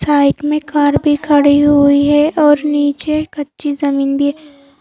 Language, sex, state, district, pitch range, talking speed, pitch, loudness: Hindi, female, Madhya Pradesh, Bhopal, 285-295 Hz, 150 wpm, 290 Hz, -13 LUFS